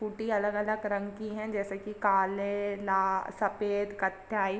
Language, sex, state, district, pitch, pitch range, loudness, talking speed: Hindi, female, Uttar Pradesh, Varanasi, 205 Hz, 195-210 Hz, -31 LUFS, 145 wpm